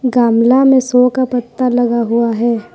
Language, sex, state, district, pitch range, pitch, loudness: Hindi, female, Jharkhand, Ranchi, 235-255 Hz, 245 Hz, -13 LUFS